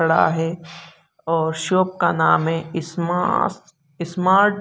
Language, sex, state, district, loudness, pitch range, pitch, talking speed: Hindi, male, Bihar, Begusarai, -20 LUFS, 160-185 Hz, 170 Hz, 115 wpm